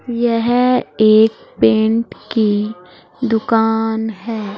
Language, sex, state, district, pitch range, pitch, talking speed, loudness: Hindi, female, Uttar Pradesh, Saharanpur, 210-230 Hz, 225 Hz, 80 wpm, -16 LUFS